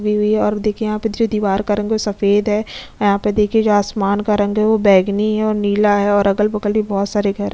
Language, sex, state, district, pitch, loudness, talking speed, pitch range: Hindi, female, Chhattisgarh, Sukma, 210 Hz, -16 LUFS, 295 wpm, 205-215 Hz